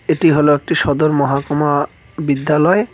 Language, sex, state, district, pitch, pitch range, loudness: Bengali, male, West Bengal, Cooch Behar, 150 Hz, 140-155 Hz, -15 LUFS